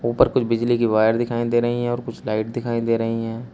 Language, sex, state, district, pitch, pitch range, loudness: Hindi, male, Uttar Pradesh, Shamli, 115 Hz, 115-120 Hz, -21 LUFS